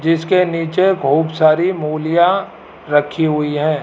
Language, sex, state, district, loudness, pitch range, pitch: Hindi, male, Rajasthan, Jaipur, -15 LUFS, 155-175 Hz, 160 Hz